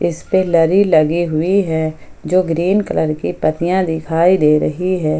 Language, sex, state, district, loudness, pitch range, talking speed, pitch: Hindi, female, Jharkhand, Ranchi, -15 LUFS, 155-185 Hz, 175 wpm, 170 Hz